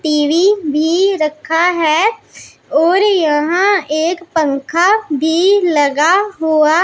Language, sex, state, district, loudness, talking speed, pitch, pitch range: Hindi, female, Punjab, Pathankot, -13 LUFS, 95 wpm, 330 Hz, 305-375 Hz